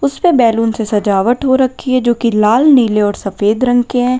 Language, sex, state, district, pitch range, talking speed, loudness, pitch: Hindi, female, Uttar Pradesh, Lalitpur, 215-255 Hz, 230 wpm, -12 LUFS, 240 Hz